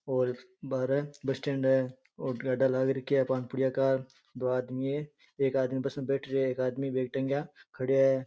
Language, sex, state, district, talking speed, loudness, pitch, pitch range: Rajasthani, male, Rajasthan, Churu, 195 wpm, -31 LUFS, 135 Hz, 130-135 Hz